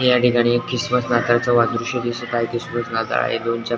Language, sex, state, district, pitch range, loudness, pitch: Marathi, male, Maharashtra, Dhule, 115-120 Hz, -20 LUFS, 120 Hz